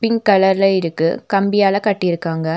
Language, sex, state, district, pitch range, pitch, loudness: Tamil, female, Tamil Nadu, Nilgiris, 170-200 Hz, 195 Hz, -16 LUFS